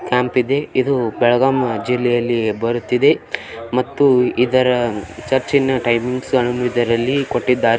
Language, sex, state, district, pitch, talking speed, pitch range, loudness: Kannada, male, Karnataka, Belgaum, 125 Hz, 85 wpm, 120-130 Hz, -17 LUFS